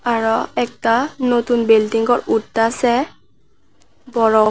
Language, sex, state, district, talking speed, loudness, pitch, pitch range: Bengali, female, Tripura, West Tripura, 80 wpm, -17 LUFS, 230 Hz, 225-245 Hz